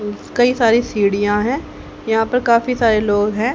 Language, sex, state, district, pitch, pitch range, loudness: Hindi, female, Haryana, Jhajjar, 225 Hz, 210-245 Hz, -16 LUFS